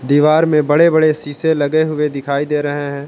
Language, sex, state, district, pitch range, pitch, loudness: Hindi, male, Jharkhand, Palamu, 145-155 Hz, 150 Hz, -15 LUFS